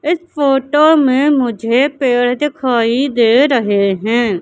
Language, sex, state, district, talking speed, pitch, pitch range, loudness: Hindi, female, Madhya Pradesh, Katni, 120 wpm, 260 Hz, 235-290 Hz, -13 LUFS